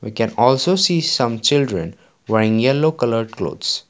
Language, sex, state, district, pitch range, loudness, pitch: English, male, Assam, Kamrup Metropolitan, 115-145 Hz, -17 LUFS, 125 Hz